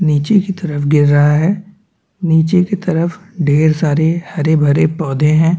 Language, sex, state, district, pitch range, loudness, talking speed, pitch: Hindi, male, Chhattisgarh, Bastar, 150-180 Hz, -14 LUFS, 150 wpm, 160 Hz